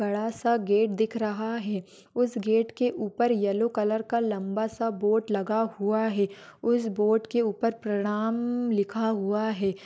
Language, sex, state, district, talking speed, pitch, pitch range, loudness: Hindi, male, Maharashtra, Dhule, 165 wpm, 220 Hz, 205-230 Hz, -27 LUFS